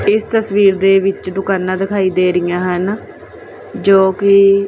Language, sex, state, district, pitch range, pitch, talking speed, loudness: Punjabi, female, Punjab, Kapurthala, 190-200 Hz, 195 Hz, 155 wpm, -14 LUFS